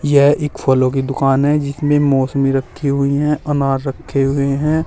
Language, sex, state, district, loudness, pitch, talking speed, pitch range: Hindi, male, Uttar Pradesh, Saharanpur, -16 LUFS, 140 Hz, 195 wpm, 135-145 Hz